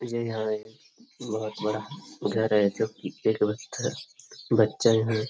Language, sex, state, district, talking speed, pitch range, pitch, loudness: Hindi, male, Bihar, Jamui, 170 wpm, 105-115 Hz, 110 Hz, -27 LUFS